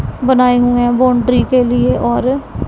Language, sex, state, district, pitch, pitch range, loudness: Hindi, female, Punjab, Pathankot, 245 Hz, 240-255 Hz, -13 LUFS